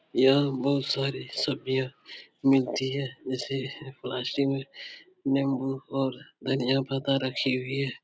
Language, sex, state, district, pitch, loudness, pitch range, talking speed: Hindi, male, Uttar Pradesh, Etah, 135 Hz, -28 LUFS, 130-140 Hz, 125 wpm